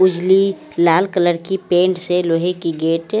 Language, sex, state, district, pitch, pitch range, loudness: Hindi, female, Haryana, Charkhi Dadri, 180 Hz, 170-190 Hz, -17 LUFS